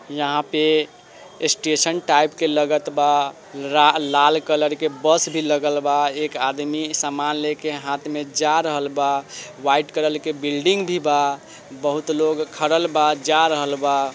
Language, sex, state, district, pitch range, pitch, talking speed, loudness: Bajjika, male, Bihar, Vaishali, 145-155 Hz, 150 Hz, 150 wpm, -20 LUFS